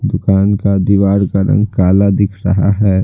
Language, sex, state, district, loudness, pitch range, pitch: Hindi, male, Bihar, Patna, -12 LUFS, 95-100 Hz, 100 Hz